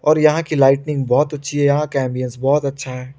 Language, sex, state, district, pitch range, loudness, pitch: Hindi, male, Jharkhand, Ranchi, 135-150 Hz, -18 LUFS, 140 Hz